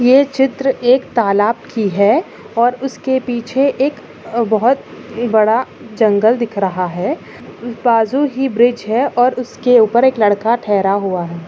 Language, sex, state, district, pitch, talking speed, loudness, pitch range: Hindi, female, Chhattisgarh, Kabirdham, 235 Hz, 140 wpm, -15 LUFS, 215-260 Hz